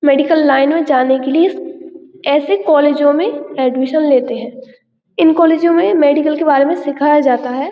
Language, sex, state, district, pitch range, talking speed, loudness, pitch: Hindi, female, Uttar Pradesh, Budaun, 270-330 Hz, 170 wpm, -13 LUFS, 295 Hz